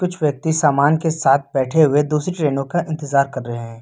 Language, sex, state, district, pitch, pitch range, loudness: Hindi, male, Uttar Pradesh, Lucknow, 145 Hz, 140-160 Hz, -18 LUFS